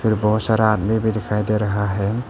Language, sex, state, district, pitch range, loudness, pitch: Hindi, male, Arunachal Pradesh, Papum Pare, 105-110 Hz, -19 LUFS, 110 Hz